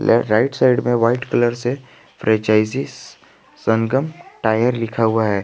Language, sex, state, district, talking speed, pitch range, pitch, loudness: Hindi, male, Jharkhand, Garhwa, 145 wpm, 110-125 Hz, 115 Hz, -18 LUFS